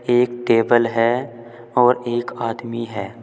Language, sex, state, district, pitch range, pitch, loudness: Hindi, male, Uttar Pradesh, Saharanpur, 115-120 Hz, 120 Hz, -19 LUFS